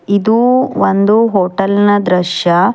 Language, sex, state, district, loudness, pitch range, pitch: Kannada, female, Karnataka, Bidar, -12 LUFS, 185-225 Hz, 200 Hz